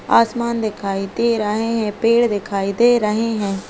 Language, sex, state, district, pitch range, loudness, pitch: Hindi, female, Chhattisgarh, Kabirdham, 205-230 Hz, -18 LUFS, 220 Hz